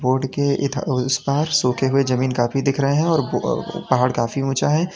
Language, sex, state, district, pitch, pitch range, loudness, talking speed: Hindi, male, Uttar Pradesh, Lalitpur, 135 Hz, 130-140 Hz, -20 LUFS, 240 wpm